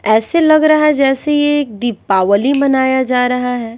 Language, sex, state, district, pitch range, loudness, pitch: Hindi, female, Bihar, Patna, 230-295 Hz, -13 LUFS, 260 Hz